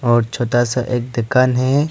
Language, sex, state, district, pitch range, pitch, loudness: Hindi, male, Arunachal Pradesh, Longding, 120-130 Hz, 125 Hz, -17 LUFS